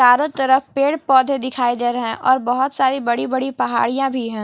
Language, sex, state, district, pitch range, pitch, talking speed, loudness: Hindi, female, Jharkhand, Garhwa, 245-270 Hz, 260 Hz, 190 wpm, -18 LUFS